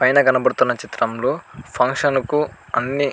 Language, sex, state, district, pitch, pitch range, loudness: Telugu, male, Andhra Pradesh, Anantapur, 135 Hz, 130-140 Hz, -19 LUFS